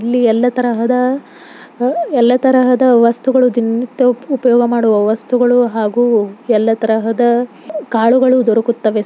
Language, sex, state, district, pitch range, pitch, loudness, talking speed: Kannada, female, Karnataka, Belgaum, 225-250 Hz, 240 Hz, -13 LUFS, 85 wpm